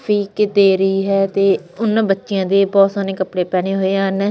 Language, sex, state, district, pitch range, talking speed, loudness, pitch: Punjabi, female, Punjab, Fazilka, 195-200 Hz, 180 wpm, -16 LUFS, 195 Hz